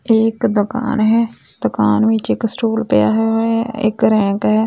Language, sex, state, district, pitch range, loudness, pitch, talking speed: Punjabi, female, Punjab, Fazilka, 205-230 Hz, -16 LUFS, 220 Hz, 165 wpm